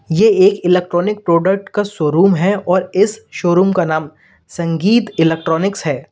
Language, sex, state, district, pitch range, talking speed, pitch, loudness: Hindi, male, Uttar Pradesh, Lalitpur, 165-200 Hz, 145 wpm, 180 Hz, -15 LUFS